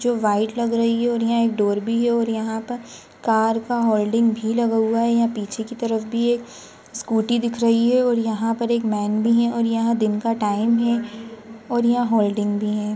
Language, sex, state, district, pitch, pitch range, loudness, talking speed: Hindi, female, Uttar Pradesh, Jyotiba Phule Nagar, 230 Hz, 220-235 Hz, -20 LUFS, 225 wpm